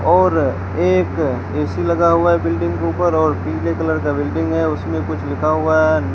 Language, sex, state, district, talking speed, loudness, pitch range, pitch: Hindi, male, Rajasthan, Bikaner, 195 wpm, -17 LUFS, 85-100 Hz, 85 Hz